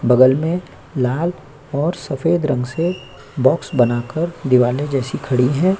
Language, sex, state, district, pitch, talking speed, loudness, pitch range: Hindi, male, Chhattisgarh, Korba, 140 Hz, 135 wpm, -18 LUFS, 125-165 Hz